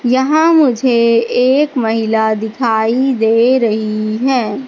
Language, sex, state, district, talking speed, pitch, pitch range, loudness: Hindi, female, Madhya Pradesh, Katni, 105 wpm, 235 Hz, 225-260 Hz, -13 LUFS